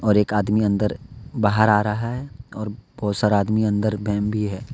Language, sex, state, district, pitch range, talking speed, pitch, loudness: Hindi, male, Jharkhand, Deoghar, 105-110 Hz, 190 wpm, 105 Hz, -22 LUFS